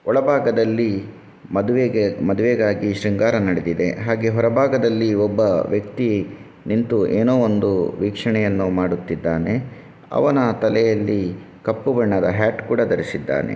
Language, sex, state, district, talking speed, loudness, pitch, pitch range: Kannada, male, Karnataka, Shimoga, 100 wpm, -19 LUFS, 110 Hz, 100-115 Hz